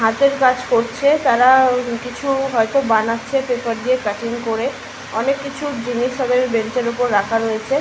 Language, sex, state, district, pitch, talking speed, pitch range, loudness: Bengali, female, West Bengal, Malda, 245 Hz, 155 wpm, 230-265 Hz, -18 LUFS